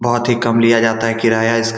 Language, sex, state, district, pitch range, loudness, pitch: Hindi, male, Bihar, Saran, 115-120 Hz, -14 LUFS, 115 Hz